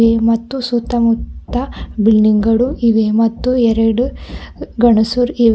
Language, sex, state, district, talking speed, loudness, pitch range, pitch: Kannada, female, Karnataka, Bidar, 120 wpm, -14 LUFS, 225-245 Hz, 230 Hz